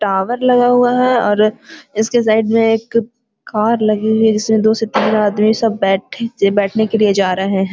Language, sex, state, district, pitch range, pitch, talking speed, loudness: Hindi, female, Bihar, Jamui, 210-230 Hz, 220 Hz, 200 wpm, -14 LUFS